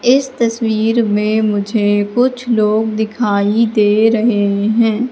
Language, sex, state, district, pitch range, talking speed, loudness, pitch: Hindi, female, Madhya Pradesh, Katni, 210-235 Hz, 115 wpm, -14 LUFS, 220 Hz